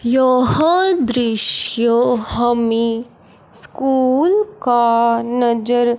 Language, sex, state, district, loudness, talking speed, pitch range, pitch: Hindi, male, Punjab, Fazilka, -15 LUFS, 60 wpm, 235-260 Hz, 240 Hz